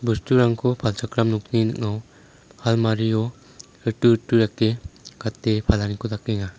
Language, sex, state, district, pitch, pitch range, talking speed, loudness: Garo, male, Meghalaya, South Garo Hills, 110 Hz, 110-120 Hz, 100 wpm, -22 LUFS